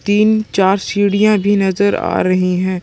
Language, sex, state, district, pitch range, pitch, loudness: Hindi, male, Chhattisgarh, Sukma, 185-205 Hz, 200 Hz, -14 LUFS